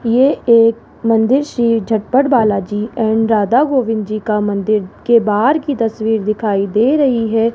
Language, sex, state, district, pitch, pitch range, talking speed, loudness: Hindi, female, Rajasthan, Jaipur, 225 Hz, 215-245 Hz, 160 wpm, -14 LUFS